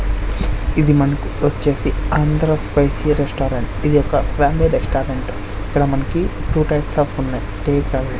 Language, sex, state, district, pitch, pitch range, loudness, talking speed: Telugu, male, Andhra Pradesh, Sri Satya Sai, 135 Hz, 100-145 Hz, -18 LUFS, 130 wpm